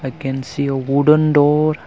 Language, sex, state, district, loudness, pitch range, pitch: English, male, Arunachal Pradesh, Longding, -16 LUFS, 135-150 Hz, 145 Hz